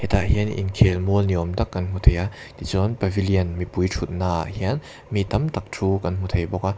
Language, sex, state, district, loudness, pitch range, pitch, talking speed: Mizo, male, Mizoram, Aizawl, -23 LUFS, 90-100 Hz, 95 Hz, 240 wpm